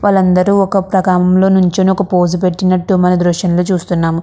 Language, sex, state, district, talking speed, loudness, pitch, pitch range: Telugu, female, Andhra Pradesh, Krishna, 170 wpm, -12 LUFS, 185 Hz, 180-190 Hz